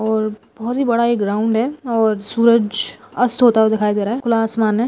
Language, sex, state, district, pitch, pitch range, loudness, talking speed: Hindi, female, Maharashtra, Nagpur, 225 Hz, 215-235 Hz, -17 LUFS, 220 wpm